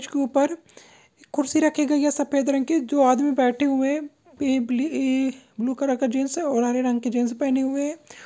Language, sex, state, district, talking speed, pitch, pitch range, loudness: Maithili, female, Bihar, Begusarai, 230 wpm, 275 Hz, 260-290 Hz, -23 LUFS